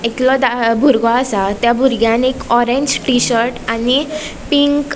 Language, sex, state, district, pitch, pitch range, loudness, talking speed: Konkani, female, Goa, North and South Goa, 245 Hz, 230-270 Hz, -14 LUFS, 145 wpm